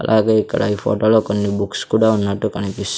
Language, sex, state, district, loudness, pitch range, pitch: Telugu, male, Andhra Pradesh, Sri Satya Sai, -17 LUFS, 100-110 Hz, 105 Hz